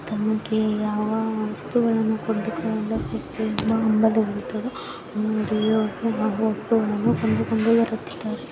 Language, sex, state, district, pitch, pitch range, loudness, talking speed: Kannada, female, Karnataka, Mysore, 220 Hz, 215-225 Hz, -23 LUFS, 55 wpm